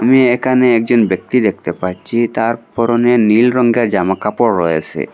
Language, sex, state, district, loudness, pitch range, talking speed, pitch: Bengali, male, Assam, Hailakandi, -14 LUFS, 105-120 Hz, 140 wpm, 115 Hz